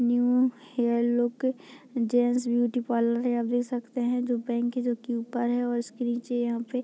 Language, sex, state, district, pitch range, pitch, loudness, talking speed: Hindi, female, Bihar, Muzaffarpur, 240-245 Hz, 240 Hz, -27 LUFS, 210 wpm